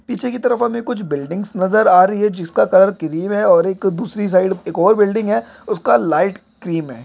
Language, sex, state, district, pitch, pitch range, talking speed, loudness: Hindi, male, Maharashtra, Sindhudurg, 200 Hz, 185-220 Hz, 220 wpm, -16 LUFS